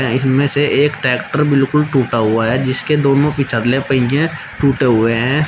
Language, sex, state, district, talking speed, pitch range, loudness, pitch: Hindi, male, Uttar Pradesh, Shamli, 155 wpm, 125-145 Hz, -15 LUFS, 135 Hz